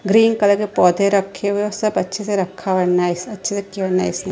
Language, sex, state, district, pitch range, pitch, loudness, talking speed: Hindi, female, Gujarat, Gandhinagar, 185-205 Hz, 200 Hz, -18 LUFS, 265 wpm